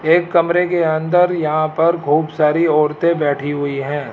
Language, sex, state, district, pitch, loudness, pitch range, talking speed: Hindi, male, Rajasthan, Jaipur, 155 Hz, -16 LUFS, 150-170 Hz, 175 wpm